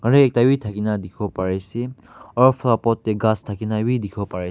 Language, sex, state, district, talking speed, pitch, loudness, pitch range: Nagamese, male, Nagaland, Kohima, 200 wpm, 110 Hz, -20 LUFS, 105-120 Hz